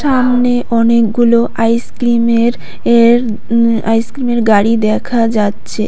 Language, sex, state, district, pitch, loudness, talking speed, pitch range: Bengali, female, West Bengal, Cooch Behar, 235 Hz, -12 LUFS, 80 wpm, 225-240 Hz